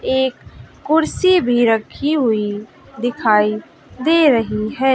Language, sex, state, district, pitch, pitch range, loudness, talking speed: Hindi, female, Bihar, West Champaran, 245 Hz, 215-295 Hz, -17 LUFS, 110 wpm